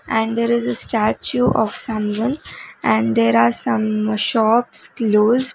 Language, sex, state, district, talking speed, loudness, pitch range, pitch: English, female, Karnataka, Bangalore, 140 wpm, -16 LUFS, 210-235 Hz, 220 Hz